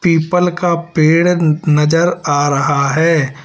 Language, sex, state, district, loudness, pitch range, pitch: Hindi, male, Uttar Pradesh, Lalitpur, -13 LUFS, 145-170 Hz, 160 Hz